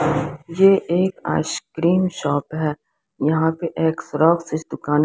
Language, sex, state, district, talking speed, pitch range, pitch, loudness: Hindi, female, Odisha, Sambalpur, 130 wpm, 155-170 Hz, 160 Hz, -20 LUFS